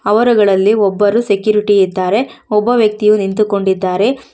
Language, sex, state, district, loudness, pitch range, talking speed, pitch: Kannada, female, Karnataka, Bangalore, -13 LUFS, 195-215 Hz, 95 wpm, 210 Hz